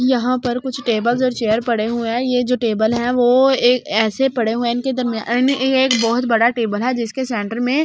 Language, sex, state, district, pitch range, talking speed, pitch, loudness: Hindi, female, Delhi, New Delhi, 230-255 Hz, 235 wpm, 245 Hz, -17 LUFS